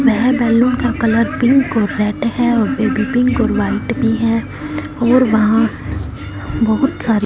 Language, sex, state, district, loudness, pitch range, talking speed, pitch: Hindi, female, Punjab, Fazilka, -15 LUFS, 225-250 Hz, 175 wpm, 235 Hz